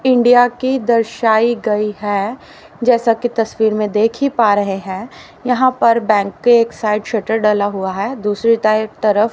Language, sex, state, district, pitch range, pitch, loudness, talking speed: Hindi, female, Haryana, Rohtak, 210-240 Hz, 220 Hz, -15 LUFS, 165 wpm